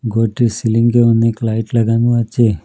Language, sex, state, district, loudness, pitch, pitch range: Bengali, male, Assam, Hailakandi, -14 LUFS, 115 Hz, 115-120 Hz